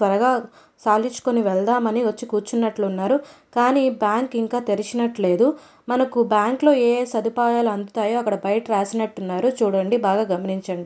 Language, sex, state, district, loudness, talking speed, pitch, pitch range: Telugu, female, Andhra Pradesh, Anantapur, -21 LUFS, 130 wpm, 225 Hz, 205-245 Hz